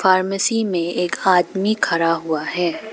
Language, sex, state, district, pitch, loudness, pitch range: Hindi, female, Arunachal Pradesh, Papum Pare, 180 Hz, -19 LUFS, 165-195 Hz